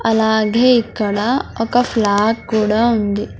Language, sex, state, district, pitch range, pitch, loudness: Telugu, male, Andhra Pradesh, Sri Satya Sai, 215-235 Hz, 220 Hz, -16 LUFS